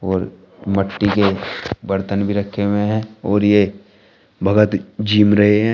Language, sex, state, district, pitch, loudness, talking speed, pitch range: Hindi, male, Uttar Pradesh, Shamli, 100 Hz, -17 LUFS, 135 wpm, 100-105 Hz